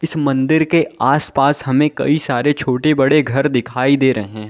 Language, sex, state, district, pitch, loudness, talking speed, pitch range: Hindi, male, Uttar Pradesh, Lalitpur, 140 Hz, -15 LUFS, 175 wpm, 130-150 Hz